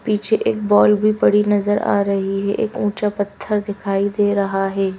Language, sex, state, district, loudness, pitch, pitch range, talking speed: Hindi, female, Madhya Pradesh, Bhopal, -18 LUFS, 200 Hz, 195-205 Hz, 190 wpm